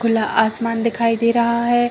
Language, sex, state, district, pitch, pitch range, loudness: Hindi, female, Chhattisgarh, Raigarh, 230 Hz, 230-235 Hz, -18 LUFS